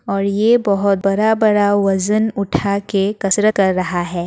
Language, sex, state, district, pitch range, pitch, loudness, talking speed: Hindi, female, Bihar, Madhepura, 195-210 Hz, 200 Hz, -16 LUFS, 155 wpm